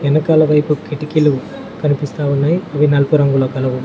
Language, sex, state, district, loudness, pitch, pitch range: Telugu, male, Telangana, Mahabubabad, -15 LUFS, 150 Hz, 140-150 Hz